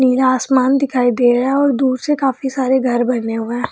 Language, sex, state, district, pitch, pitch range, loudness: Hindi, female, Bihar, Jamui, 255 Hz, 245-270 Hz, -16 LUFS